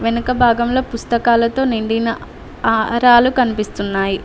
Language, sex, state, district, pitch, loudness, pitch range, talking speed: Telugu, female, Telangana, Mahabubabad, 235 Hz, -16 LUFS, 225-245 Hz, 85 wpm